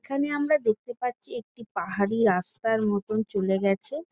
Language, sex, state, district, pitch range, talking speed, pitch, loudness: Bengali, female, West Bengal, Jalpaiguri, 200-275 Hz, 160 wpm, 220 Hz, -26 LUFS